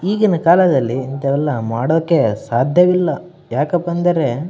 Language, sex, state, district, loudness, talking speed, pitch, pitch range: Kannada, male, Karnataka, Bellary, -16 LUFS, 105 wpm, 160 Hz, 135-175 Hz